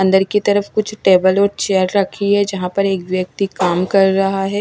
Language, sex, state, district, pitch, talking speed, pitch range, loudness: Hindi, female, Odisha, Malkangiri, 195 Hz, 220 wpm, 185-200 Hz, -16 LUFS